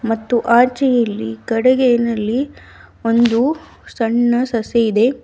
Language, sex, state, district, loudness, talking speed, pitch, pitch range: Kannada, female, Karnataka, Bidar, -16 LUFS, 90 wpm, 235 Hz, 225-250 Hz